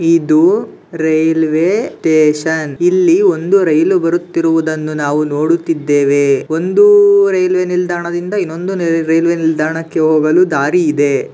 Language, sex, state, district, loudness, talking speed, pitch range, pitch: Kannada, male, Karnataka, Gulbarga, -13 LUFS, 95 wpm, 155-190 Hz, 165 Hz